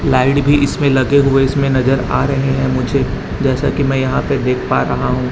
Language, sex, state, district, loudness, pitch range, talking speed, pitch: Hindi, male, Chhattisgarh, Raipur, -15 LUFS, 130-140 Hz, 225 wpm, 135 Hz